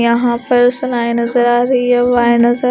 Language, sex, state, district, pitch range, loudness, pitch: Hindi, female, Maharashtra, Gondia, 235-245 Hz, -13 LUFS, 240 Hz